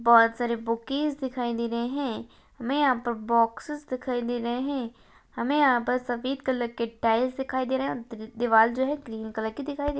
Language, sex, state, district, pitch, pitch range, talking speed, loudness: Hindi, female, Maharashtra, Chandrapur, 245 Hz, 230-265 Hz, 220 wpm, -27 LUFS